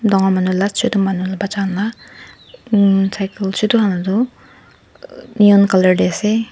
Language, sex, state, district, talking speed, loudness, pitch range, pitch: Nagamese, female, Nagaland, Dimapur, 165 wpm, -16 LUFS, 190-215 Hz, 200 Hz